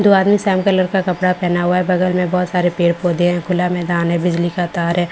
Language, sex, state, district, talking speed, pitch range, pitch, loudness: Hindi, female, Bihar, Katihar, 330 wpm, 175-185 Hz, 180 Hz, -16 LUFS